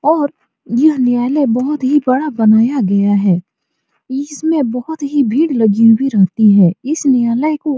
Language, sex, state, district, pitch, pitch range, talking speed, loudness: Hindi, female, Bihar, Supaul, 255 Hz, 225-295 Hz, 170 wpm, -13 LUFS